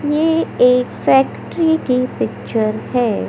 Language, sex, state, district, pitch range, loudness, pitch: Hindi, male, Madhya Pradesh, Katni, 245-300 Hz, -16 LUFS, 250 Hz